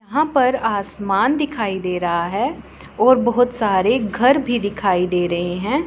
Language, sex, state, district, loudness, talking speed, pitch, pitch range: Hindi, female, Punjab, Pathankot, -18 LUFS, 165 wpm, 210 Hz, 190-255 Hz